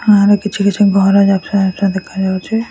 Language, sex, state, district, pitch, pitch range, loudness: Odia, female, Odisha, Khordha, 200 Hz, 195-205 Hz, -13 LUFS